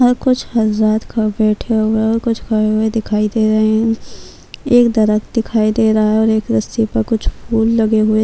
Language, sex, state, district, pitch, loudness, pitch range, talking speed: Urdu, female, Bihar, Kishanganj, 220 Hz, -15 LUFS, 215-225 Hz, 195 wpm